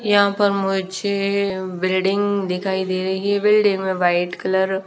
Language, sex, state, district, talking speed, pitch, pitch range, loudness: Hindi, female, Haryana, Charkhi Dadri, 160 wpm, 190 Hz, 185-200 Hz, -20 LUFS